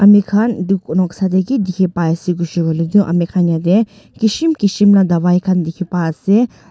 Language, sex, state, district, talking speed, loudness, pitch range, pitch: Nagamese, female, Nagaland, Dimapur, 195 wpm, -15 LUFS, 175-205 Hz, 185 Hz